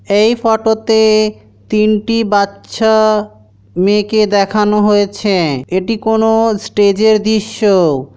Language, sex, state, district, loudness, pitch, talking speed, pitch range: Bengali, male, West Bengal, Dakshin Dinajpur, -12 LUFS, 210 Hz, 90 wpm, 200-220 Hz